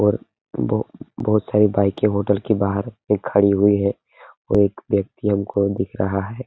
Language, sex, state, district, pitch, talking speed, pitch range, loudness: Hindi, male, Uttar Pradesh, Hamirpur, 100 Hz, 175 wpm, 100-105 Hz, -20 LUFS